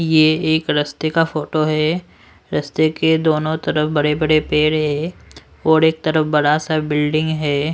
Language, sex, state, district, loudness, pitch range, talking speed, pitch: Hindi, male, Odisha, Sambalpur, -17 LUFS, 150-160 Hz, 155 wpm, 155 Hz